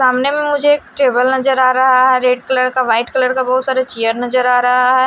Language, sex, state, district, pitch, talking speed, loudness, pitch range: Hindi, female, Odisha, Malkangiri, 255 Hz, 260 wpm, -13 LUFS, 250-260 Hz